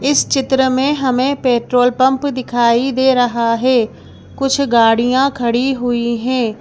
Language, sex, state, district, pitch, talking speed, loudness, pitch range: Hindi, female, Madhya Pradesh, Bhopal, 255 Hz, 135 wpm, -15 LUFS, 235-265 Hz